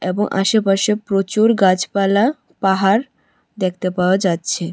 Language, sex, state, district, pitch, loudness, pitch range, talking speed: Bengali, female, Tripura, West Tripura, 195 Hz, -17 LUFS, 185-215 Hz, 100 wpm